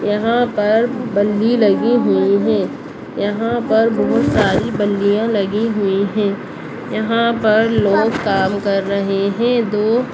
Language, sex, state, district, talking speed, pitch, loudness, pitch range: Kumaoni, female, Uttarakhand, Uttarkashi, 135 wpm, 210 Hz, -16 LUFS, 200-230 Hz